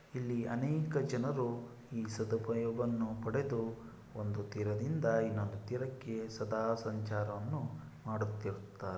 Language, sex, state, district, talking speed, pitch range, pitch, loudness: Kannada, male, Karnataka, Shimoga, 80 wpm, 110-125 Hz, 115 Hz, -38 LUFS